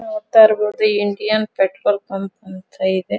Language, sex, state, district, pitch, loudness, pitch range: Kannada, female, Karnataka, Dharwad, 210 Hz, -17 LUFS, 195-220 Hz